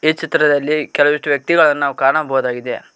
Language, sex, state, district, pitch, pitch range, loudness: Kannada, male, Karnataka, Koppal, 145 Hz, 140-155 Hz, -15 LUFS